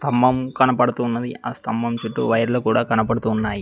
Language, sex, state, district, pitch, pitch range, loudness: Telugu, male, Telangana, Mahabubabad, 120 Hz, 115-125 Hz, -20 LUFS